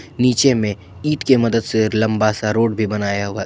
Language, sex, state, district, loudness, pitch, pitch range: Hindi, male, Jharkhand, Ranchi, -17 LUFS, 110 Hz, 105-115 Hz